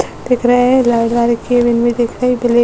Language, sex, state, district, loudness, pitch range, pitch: Hindi, female, Uttar Pradesh, Hamirpur, -13 LUFS, 235-245 Hz, 240 Hz